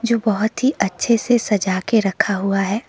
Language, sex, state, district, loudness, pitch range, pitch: Hindi, female, Sikkim, Gangtok, -18 LUFS, 195-235 Hz, 215 Hz